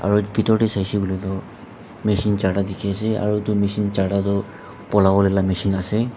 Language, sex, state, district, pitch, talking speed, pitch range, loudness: Nagamese, male, Nagaland, Dimapur, 100 Hz, 195 wpm, 95-105 Hz, -20 LUFS